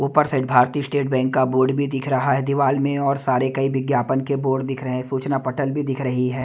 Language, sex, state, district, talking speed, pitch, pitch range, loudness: Hindi, male, Delhi, New Delhi, 260 wpm, 135 Hz, 130-140 Hz, -21 LUFS